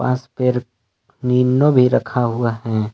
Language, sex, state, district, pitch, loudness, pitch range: Hindi, male, Jharkhand, Palamu, 125 Hz, -18 LUFS, 115-125 Hz